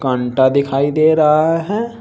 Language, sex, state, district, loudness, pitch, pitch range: Hindi, male, Uttar Pradesh, Shamli, -14 LUFS, 150 Hz, 135-165 Hz